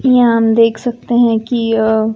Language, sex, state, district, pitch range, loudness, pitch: Hindi, female, Bihar, West Champaran, 225-240 Hz, -13 LUFS, 230 Hz